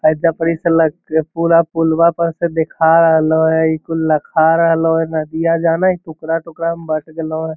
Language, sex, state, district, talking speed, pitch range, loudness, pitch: Magahi, male, Bihar, Lakhisarai, 215 wpm, 160-165 Hz, -15 LUFS, 165 Hz